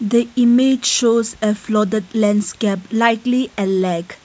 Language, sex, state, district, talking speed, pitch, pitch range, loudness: English, female, Nagaland, Kohima, 125 wpm, 220 Hz, 205-235 Hz, -17 LUFS